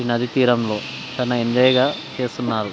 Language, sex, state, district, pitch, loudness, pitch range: Telugu, male, Telangana, Nalgonda, 120 Hz, -20 LUFS, 115-125 Hz